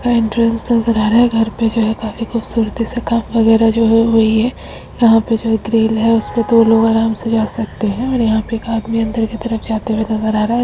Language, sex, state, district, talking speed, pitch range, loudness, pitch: Hindi, female, Bihar, Samastipur, 275 wpm, 220-230 Hz, -15 LUFS, 225 Hz